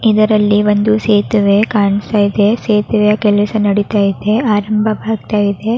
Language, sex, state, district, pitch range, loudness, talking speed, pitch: Kannada, female, Karnataka, Raichur, 205-215 Hz, -13 LUFS, 115 wpm, 210 Hz